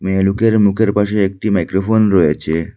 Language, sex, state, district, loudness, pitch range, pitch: Bengali, male, Assam, Hailakandi, -15 LUFS, 95-110 Hz, 100 Hz